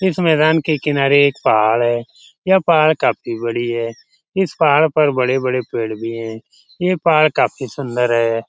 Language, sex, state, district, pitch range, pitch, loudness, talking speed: Hindi, male, Bihar, Lakhisarai, 115-155 Hz, 135 Hz, -16 LUFS, 205 wpm